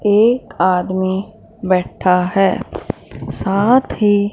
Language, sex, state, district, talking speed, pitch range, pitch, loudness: Hindi, female, Punjab, Fazilka, 85 wpm, 185-215 Hz, 195 Hz, -16 LUFS